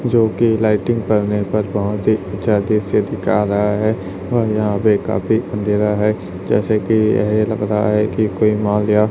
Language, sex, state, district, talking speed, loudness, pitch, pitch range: Hindi, male, Chhattisgarh, Raipur, 190 wpm, -17 LUFS, 105 Hz, 105-110 Hz